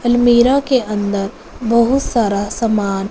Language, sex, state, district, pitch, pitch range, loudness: Hindi, female, Punjab, Fazilka, 235 Hz, 205-245 Hz, -15 LUFS